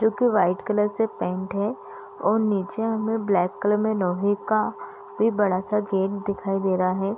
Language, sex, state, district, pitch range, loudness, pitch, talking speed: Hindi, female, Bihar, Gopalganj, 185-215 Hz, -24 LUFS, 200 Hz, 200 wpm